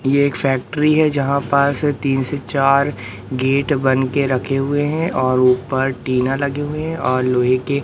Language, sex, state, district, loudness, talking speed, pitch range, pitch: Hindi, male, Madhya Pradesh, Katni, -17 LUFS, 185 wpm, 130-145 Hz, 140 Hz